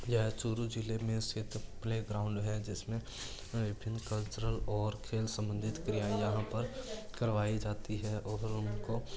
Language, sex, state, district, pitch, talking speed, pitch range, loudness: Hindi, male, Rajasthan, Churu, 110 Hz, 150 wpm, 105-115 Hz, -38 LUFS